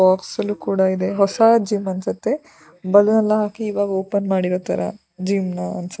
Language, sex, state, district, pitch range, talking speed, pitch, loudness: Kannada, female, Karnataka, Shimoga, 185-205 Hz, 130 wpm, 195 Hz, -19 LUFS